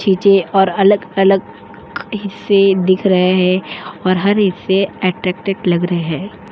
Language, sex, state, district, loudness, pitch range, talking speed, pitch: Hindi, female, Uttar Pradesh, Jyotiba Phule Nagar, -15 LUFS, 185-195 Hz, 130 wpm, 190 Hz